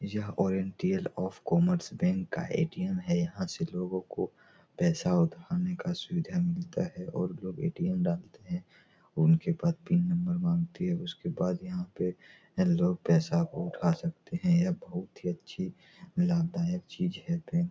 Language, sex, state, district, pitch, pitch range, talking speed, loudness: Hindi, male, Bihar, Araria, 175 Hz, 170-180 Hz, 155 wpm, -31 LUFS